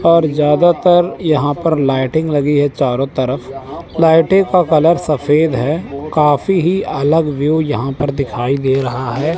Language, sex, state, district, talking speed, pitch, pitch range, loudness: Hindi, male, Chandigarh, Chandigarh, 155 wpm, 150 Hz, 140-165 Hz, -14 LUFS